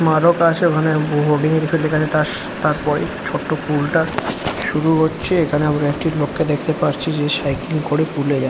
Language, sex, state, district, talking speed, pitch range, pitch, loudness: Bengali, male, West Bengal, Jhargram, 190 wpm, 150-160 Hz, 155 Hz, -18 LUFS